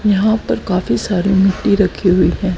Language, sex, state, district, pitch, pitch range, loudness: Hindi, female, Haryana, Charkhi Dadri, 195 Hz, 185-205 Hz, -15 LUFS